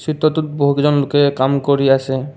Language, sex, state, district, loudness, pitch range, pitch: Assamese, male, Assam, Kamrup Metropolitan, -15 LUFS, 135-150 Hz, 140 Hz